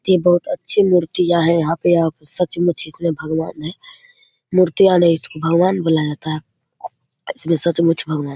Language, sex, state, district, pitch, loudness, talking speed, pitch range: Hindi, male, Bihar, Begusarai, 170 Hz, -17 LUFS, 170 wpm, 160-180 Hz